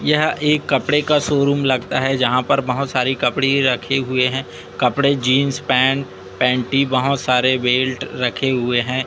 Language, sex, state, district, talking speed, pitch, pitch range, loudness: Hindi, male, Chhattisgarh, Raipur, 165 wpm, 130 Hz, 125-140 Hz, -17 LUFS